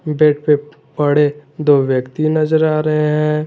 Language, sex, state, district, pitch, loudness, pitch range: Hindi, male, Jharkhand, Garhwa, 150 Hz, -15 LUFS, 145-155 Hz